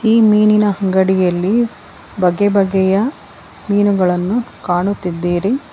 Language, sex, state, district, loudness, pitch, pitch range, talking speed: Kannada, female, Karnataka, Bangalore, -15 LUFS, 200 Hz, 185-210 Hz, 75 wpm